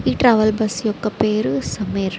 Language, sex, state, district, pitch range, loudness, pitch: Telugu, female, Andhra Pradesh, Srikakulam, 195-220 Hz, -19 LUFS, 215 Hz